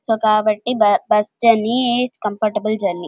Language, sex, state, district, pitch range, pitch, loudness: Telugu, female, Andhra Pradesh, Krishna, 210-235 Hz, 215 Hz, -17 LUFS